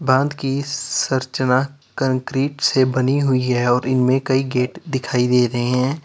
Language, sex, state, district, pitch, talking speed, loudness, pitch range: Hindi, male, Uttar Pradesh, Lalitpur, 130 Hz, 160 wpm, -19 LUFS, 125-135 Hz